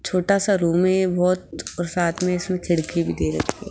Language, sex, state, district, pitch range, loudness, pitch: Hindi, female, Rajasthan, Jaipur, 170-185 Hz, -21 LUFS, 180 Hz